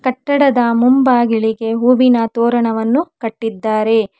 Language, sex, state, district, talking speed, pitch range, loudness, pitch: Kannada, female, Karnataka, Bangalore, 70 wpm, 225-255 Hz, -14 LUFS, 235 Hz